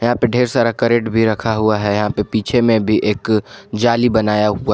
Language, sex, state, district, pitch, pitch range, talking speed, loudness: Hindi, male, Jharkhand, Ranchi, 110 Hz, 105-120 Hz, 240 wpm, -16 LUFS